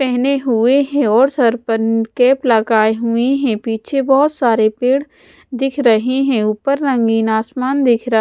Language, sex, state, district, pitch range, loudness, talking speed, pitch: Hindi, female, Odisha, Sambalpur, 225-270 Hz, -15 LUFS, 160 wpm, 245 Hz